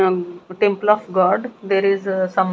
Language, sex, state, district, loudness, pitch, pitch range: English, female, Punjab, Kapurthala, -19 LUFS, 190 Hz, 185-200 Hz